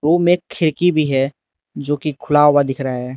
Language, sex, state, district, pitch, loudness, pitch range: Hindi, male, Arunachal Pradesh, Lower Dibang Valley, 145 Hz, -17 LUFS, 135-155 Hz